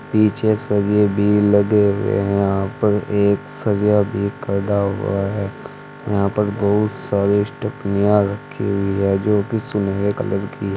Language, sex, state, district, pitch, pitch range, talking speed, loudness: Hindi, male, Uttar Pradesh, Saharanpur, 100 Hz, 100-105 Hz, 150 wpm, -19 LUFS